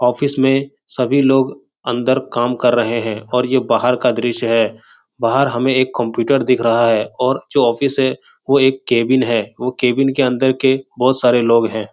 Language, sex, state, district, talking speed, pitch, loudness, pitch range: Hindi, male, Bihar, Jahanabad, 195 wpm, 125 Hz, -16 LUFS, 120-135 Hz